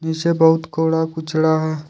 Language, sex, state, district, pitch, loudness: Hindi, male, Jharkhand, Deoghar, 160 Hz, -18 LUFS